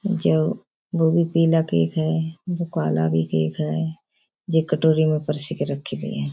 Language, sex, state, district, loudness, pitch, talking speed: Hindi, female, Uttar Pradesh, Budaun, -22 LUFS, 155 Hz, 180 wpm